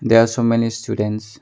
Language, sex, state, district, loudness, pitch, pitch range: English, male, Arunachal Pradesh, Longding, -18 LUFS, 115 Hz, 105-115 Hz